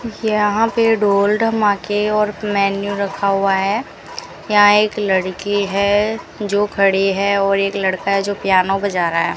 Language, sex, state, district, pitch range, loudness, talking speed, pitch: Hindi, female, Rajasthan, Bikaner, 195-210 Hz, -16 LUFS, 160 wpm, 200 Hz